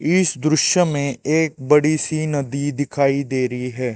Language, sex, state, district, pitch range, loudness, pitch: Hindi, male, Chhattisgarh, Raipur, 135-155 Hz, -19 LUFS, 145 Hz